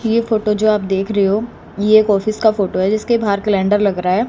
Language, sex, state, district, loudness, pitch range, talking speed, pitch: Hindi, female, Haryana, Rohtak, -16 LUFS, 200-215 Hz, 265 wpm, 210 Hz